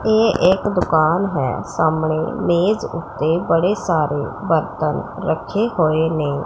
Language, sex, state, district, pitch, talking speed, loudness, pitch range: Punjabi, female, Punjab, Pathankot, 165 Hz, 120 wpm, -19 LUFS, 155-190 Hz